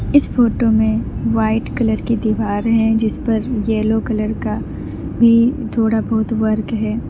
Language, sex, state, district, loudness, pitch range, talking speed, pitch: Hindi, female, Uttar Pradesh, Lalitpur, -17 LUFS, 215-230 Hz, 150 wpm, 220 Hz